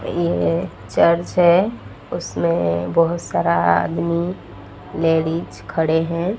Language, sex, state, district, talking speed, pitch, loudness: Hindi, female, Odisha, Sambalpur, 95 wpm, 145 Hz, -19 LUFS